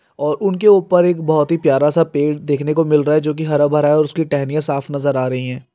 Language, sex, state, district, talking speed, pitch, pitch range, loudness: Hindi, male, Rajasthan, Nagaur, 280 wpm, 150 Hz, 145-160 Hz, -16 LUFS